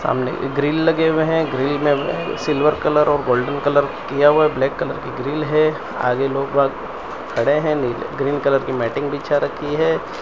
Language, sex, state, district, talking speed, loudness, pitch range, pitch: Hindi, male, Gujarat, Valsad, 205 wpm, -19 LUFS, 140-155 Hz, 145 Hz